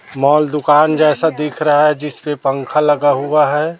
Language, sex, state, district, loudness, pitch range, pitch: Hindi, male, Chhattisgarh, Raipur, -14 LUFS, 145-150 Hz, 150 Hz